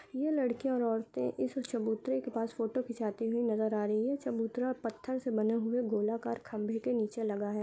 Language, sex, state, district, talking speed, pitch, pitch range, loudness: Hindi, female, Uttar Pradesh, Budaun, 205 wpm, 230 Hz, 220-250 Hz, -34 LUFS